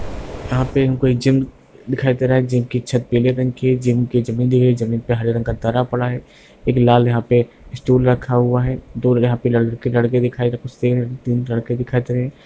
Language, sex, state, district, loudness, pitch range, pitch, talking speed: Hindi, female, Bihar, Darbhanga, -18 LUFS, 120-125 Hz, 125 Hz, 245 wpm